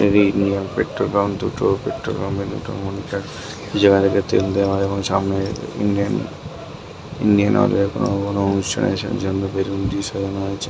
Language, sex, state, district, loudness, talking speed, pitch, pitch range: Bengali, male, West Bengal, Dakshin Dinajpur, -20 LUFS, 125 wpm, 100 Hz, 95-100 Hz